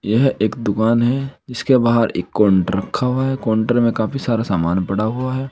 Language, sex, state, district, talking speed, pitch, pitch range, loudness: Hindi, male, Uttar Pradesh, Saharanpur, 205 wpm, 115 Hz, 110-130 Hz, -18 LUFS